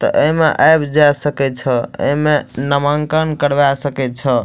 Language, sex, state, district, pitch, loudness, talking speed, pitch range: Maithili, male, Bihar, Madhepura, 145 Hz, -15 LUFS, 160 wpm, 135-150 Hz